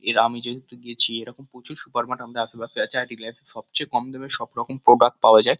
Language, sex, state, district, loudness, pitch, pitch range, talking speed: Bengali, male, West Bengal, Kolkata, -21 LUFS, 120 Hz, 115-125 Hz, 215 wpm